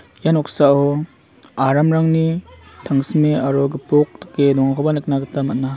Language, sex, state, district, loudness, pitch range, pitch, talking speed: Garo, male, Meghalaya, West Garo Hills, -17 LUFS, 135-155 Hz, 145 Hz, 115 wpm